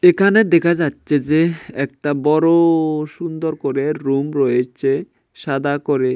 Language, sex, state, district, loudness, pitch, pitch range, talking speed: Bengali, male, Tripura, West Tripura, -17 LUFS, 150 Hz, 140-165 Hz, 115 wpm